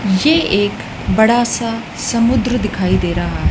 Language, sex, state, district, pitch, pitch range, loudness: Hindi, female, Madhya Pradesh, Dhar, 225 Hz, 195-240 Hz, -15 LUFS